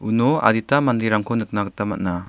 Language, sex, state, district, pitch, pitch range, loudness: Garo, male, Meghalaya, South Garo Hills, 110 Hz, 105-120 Hz, -20 LUFS